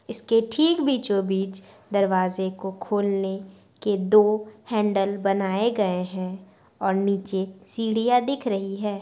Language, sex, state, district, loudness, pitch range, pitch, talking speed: Hindi, female, Bihar, Madhepura, -24 LUFS, 190-215 Hz, 200 Hz, 120 wpm